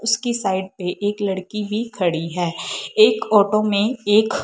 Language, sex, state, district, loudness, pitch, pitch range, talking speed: Hindi, female, Punjab, Fazilka, -20 LUFS, 205 Hz, 190-220 Hz, 150 wpm